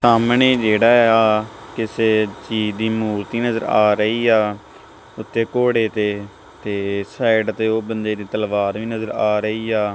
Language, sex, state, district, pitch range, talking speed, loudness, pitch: Punjabi, male, Punjab, Kapurthala, 105-115 Hz, 155 wpm, -18 LUFS, 110 Hz